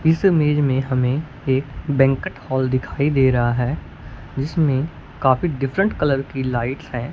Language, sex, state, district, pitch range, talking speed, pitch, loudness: Hindi, male, Punjab, Fazilka, 130-150 Hz, 150 wpm, 135 Hz, -20 LUFS